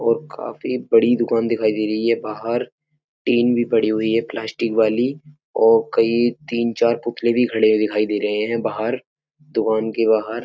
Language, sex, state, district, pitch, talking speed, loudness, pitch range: Hindi, male, Uttar Pradesh, Etah, 115 Hz, 185 wpm, -19 LUFS, 110-120 Hz